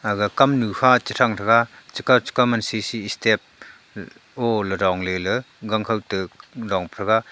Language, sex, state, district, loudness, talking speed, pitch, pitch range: Wancho, male, Arunachal Pradesh, Longding, -21 LUFS, 180 wpm, 110 Hz, 105-125 Hz